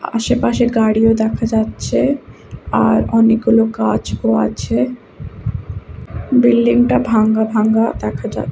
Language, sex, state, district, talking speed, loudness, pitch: Bengali, female, West Bengal, Kolkata, 100 wpm, -15 LUFS, 220 Hz